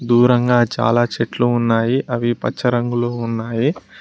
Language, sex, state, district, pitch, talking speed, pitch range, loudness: Telugu, male, Telangana, Mahabubabad, 120 Hz, 120 wpm, 115-120 Hz, -18 LUFS